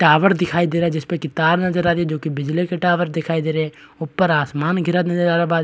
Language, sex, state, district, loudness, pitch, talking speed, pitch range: Hindi, male, Bihar, Kishanganj, -19 LUFS, 170 Hz, 320 wpm, 160-175 Hz